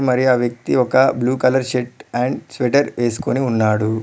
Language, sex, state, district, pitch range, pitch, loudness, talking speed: Telugu, male, Telangana, Mahabubabad, 120-130 Hz, 125 Hz, -18 LUFS, 165 wpm